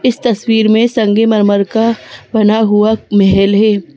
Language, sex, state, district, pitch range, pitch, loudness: Hindi, female, Madhya Pradesh, Bhopal, 205-225 Hz, 215 Hz, -11 LUFS